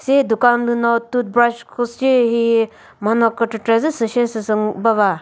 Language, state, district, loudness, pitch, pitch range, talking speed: Chakhesang, Nagaland, Dimapur, -17 LUFS, 235 Hz, 225-240 Hz, 160 wpm